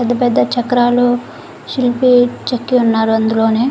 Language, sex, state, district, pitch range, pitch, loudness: Telugu, female, Andhra Pradesh, Guntur, 230-250 Hz, 245 Hz, -14 LUFS